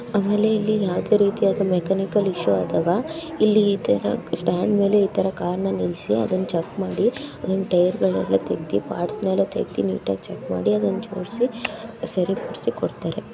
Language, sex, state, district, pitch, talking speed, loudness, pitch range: Kannada, female, Karnataka, Dakshina Kannada, 195 Hz, 115 wpm, -22 LUFS, 175-210 Hz